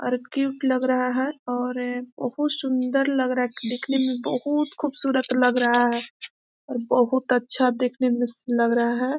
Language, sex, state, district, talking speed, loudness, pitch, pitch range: Hindi, female, Chhattisgarh, Korba, 175 wpm, -23 LUFS, 255 Hz, 245-265 Hz